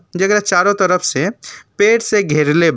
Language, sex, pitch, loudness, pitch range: Bhojpuri, male, 185 Hz, -14 LUFS, 170-205 Hz